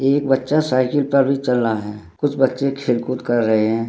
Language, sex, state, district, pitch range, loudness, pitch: Hindi, male, Uttarakhand, Tehri Garhwal, 115-140 Hz, -19 LUFS, 130 Hz